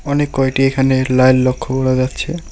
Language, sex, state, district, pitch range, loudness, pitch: Bengali, male, West Bengal, Alipurduar, 130-135 Hz, -15 LUFS, 130 Hz